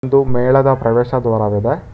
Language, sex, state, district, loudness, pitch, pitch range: Kannada, male, Karnataka, Bangalore, -15 LUFS, 125 Hz, 115-135 Hz